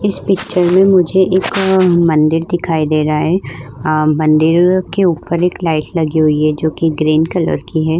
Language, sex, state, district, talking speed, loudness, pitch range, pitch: Hindi, female, Uttar Pradesh, Varanasi, 180 wpm, -13 LUFS, 155-180 Hz, 165 Hz